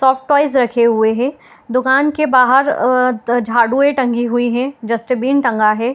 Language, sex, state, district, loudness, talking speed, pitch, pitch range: Hindi, female, Jharkhand, Jamtara, -14 LUFS, 150 wpm, 255 Hz, 235-270 Hz